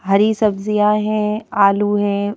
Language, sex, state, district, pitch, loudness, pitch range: Hindi, female, Madhya Pradesh, Bhopal, 210 Hz, -16 LUFS, 200-210 Hz